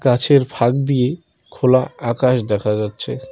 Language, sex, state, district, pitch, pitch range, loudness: Bengali, male, West Bengal, Cooch Behar, 125 Hz, 120-135 Hz, -17 LUFS